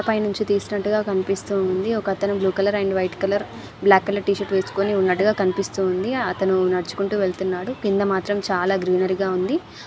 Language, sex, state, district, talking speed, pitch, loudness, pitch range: Telugu, female, Andhra Pradesh, Anantapur, 145 wpm, 195 Hz, -21 LUFS, 190-205 Hz